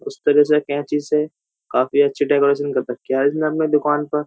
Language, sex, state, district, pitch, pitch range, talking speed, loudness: Hindi, male, Uttar Pradesh, Jyotiba Phule Nagar, 145 Hz, 140-150 Hz, 225 wpm, -19 LUFS